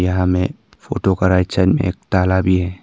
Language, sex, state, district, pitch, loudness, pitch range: Hindi, male, Arunachal Pradesh, Papum Pare, 95 Hz, -17 LUFS, 90-95 Hz